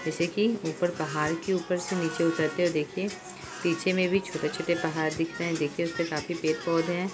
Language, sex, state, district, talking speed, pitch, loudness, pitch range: Hindi, female, Bihar, Purnia, 200 wpm, 170 Hz, -28 LUFS, 160-180 Hz